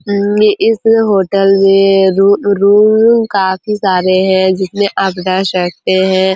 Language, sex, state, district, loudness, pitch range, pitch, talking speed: Hindi, female, Chhattisgarh, Korba, -11 LUFS, 190-205 Hz, 195 Hz, 130 wpm